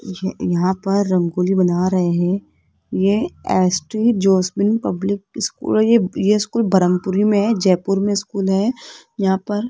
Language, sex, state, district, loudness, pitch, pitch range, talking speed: Hindi, female, Rajasthan, Jaipur, -18 LUFS, 195 Hz, 185-210 Hz, 160 wpm